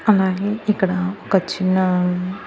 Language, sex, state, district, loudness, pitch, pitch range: Telugu, female, Andhra Pradesh, Annamaya, -19 LUFS, 190 Hz, 185-205 Hz